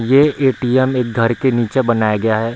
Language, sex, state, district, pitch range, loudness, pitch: Hindi, male, Bihar, Bhagalpur, 115-130 Hz, -15 LUFS, 120 Hz